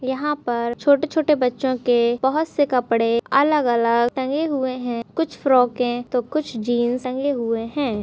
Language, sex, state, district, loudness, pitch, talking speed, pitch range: Hindi, female, Maharashtra, Dhule, -21 LUFS, 255 Hz, 155 wpm, 240-285 Hz